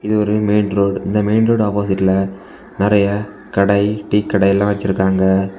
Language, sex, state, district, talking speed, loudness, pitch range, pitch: Tamil, male, Tamil Nadu, Kanyakumari, 140 wpm, -16 LUFS, 95-105 Hz, 100 Hz